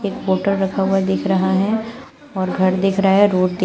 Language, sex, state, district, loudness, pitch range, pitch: Hindi, female, Uttar Pradesh, Shamli, -17 LUFS, 190-200 Hz, 195 Hz